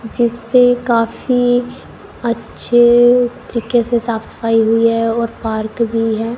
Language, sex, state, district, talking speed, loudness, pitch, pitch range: Hindi, female, Punjab, Kapurthala, 120 wpm, -15 LUFS, 235 Hz, 225-240 Hz